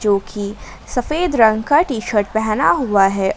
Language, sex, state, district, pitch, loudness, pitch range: Hindi, female, Jharkhand, Garhwa, 215 Hz, -17 LUFS, 200-250 Hz